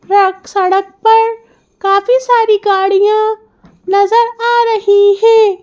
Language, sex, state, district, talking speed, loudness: Hindi, female, Madhya Pradesh, Bhopal, 105 wpm, -11 LUFS